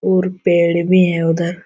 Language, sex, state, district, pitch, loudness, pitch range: Hindi, male, Jharkhand, Jamtara, 175 Hz, -15 LUFS, 170-185 Hz